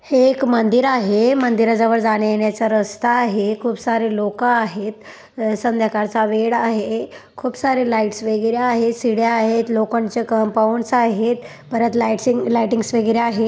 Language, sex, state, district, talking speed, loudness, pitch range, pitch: Marathi, female, Maharashtra, Dhule, 135 wpm, -18 LUFS, 220-240 Hz, 230 Hz